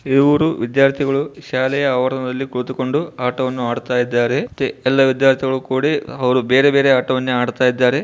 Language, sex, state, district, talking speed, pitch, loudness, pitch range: Kannada, male, Karnataka, Bijapur, 110 wpm, 130 Hz, -17 LUFS, 125-140 Hz